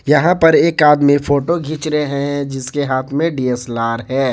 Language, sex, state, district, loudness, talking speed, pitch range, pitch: Hindi, male, Jharkhand, Garhwa, -15 LUFS, 180 wpm, 130-155 Hz, 145 Hz